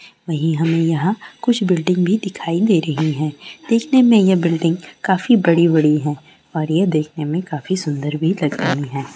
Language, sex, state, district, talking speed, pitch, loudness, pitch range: Hindi, female, West Bengal, North 24 Parganas, 185 wpm, 165 Hz, -17 LUFS, 155-190 Hz